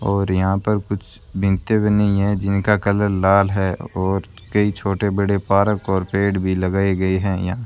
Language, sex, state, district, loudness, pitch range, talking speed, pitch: Hindi, male, Rajasthan, Bikaner, -19 LUFS, 95-100 Hz, 180 wpm, 100 Hz